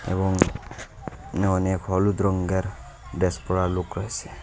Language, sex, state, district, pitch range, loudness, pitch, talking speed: Bengali, male, Assam, Hailakandi, 90-95 Hz, -25 LUFS, 95 Hz, 120 wpm